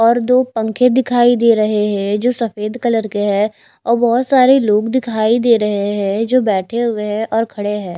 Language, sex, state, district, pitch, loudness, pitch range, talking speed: Hindi, female, Bihar, West Champaran, 225 Hz, -15 LUFS, 210-240 Hz, 205 wpm